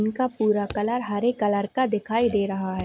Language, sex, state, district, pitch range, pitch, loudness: Hindi, female, Chhattisgarh, Jashpur, 205-240 Hz, 215 Hz, -24 LUFS